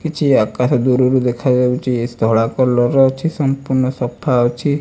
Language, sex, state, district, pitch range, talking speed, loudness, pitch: Odia, male, Odisha, Malkangiri, 125-135 Hz, 125 wpm, -16 LUFS, 130 Hz